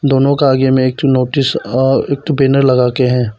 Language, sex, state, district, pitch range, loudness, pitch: Hindi, male, Arunachal Pradesh, Papum Pare, 130-140 Hz, -13 LUFS, 135 Hz